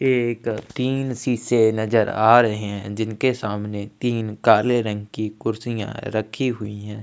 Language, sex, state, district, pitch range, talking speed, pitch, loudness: Hindi, male, Chhattisgarh, Sukma, 105-120 Hz, 145 wpm, 110 Hz, -22 LUFS